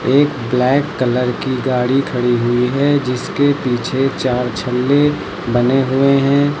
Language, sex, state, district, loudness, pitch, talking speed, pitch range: Hindi, male, Uttar Pradesh, Lucknow, -16 LUFS, 130 Hz, 135 wpm, 125-140 Hz